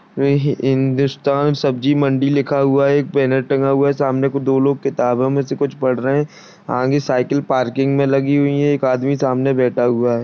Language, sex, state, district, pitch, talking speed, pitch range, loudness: Hindi, male, Uttar Pradesh, Deoria, 135 Hz, 205 wpm, 130-140 Hz, -17 LUFS